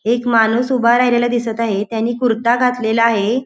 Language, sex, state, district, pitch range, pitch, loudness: Marathi, female, Goa, North and South Goa, 225-245 Hz, 235 Hz, -15 LUFS